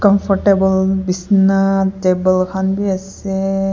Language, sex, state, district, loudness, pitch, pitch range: Nagamese, female, Nagaland, Kohima, -15 LUFS, 195 Hz, 190-195 Hz